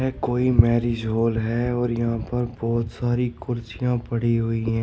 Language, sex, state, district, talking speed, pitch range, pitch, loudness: Hindi, male, Uttar Pradesh, Shamli, 175 wpm, 115-120 Hz, 115 Hz, -23 LUFS